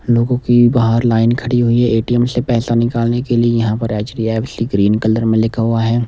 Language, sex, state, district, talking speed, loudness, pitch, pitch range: Hindi, male, Himachal Pradesh, Shimla, 215 wpm, -15 LUFS, 115 Hz, 115-120 Hz